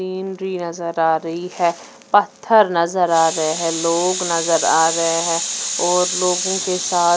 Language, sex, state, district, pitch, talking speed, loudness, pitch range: Hindi, female, Punjab, Fazilka, 170 Hz, 160 wpm, -18 LUFS, 165-180 Hz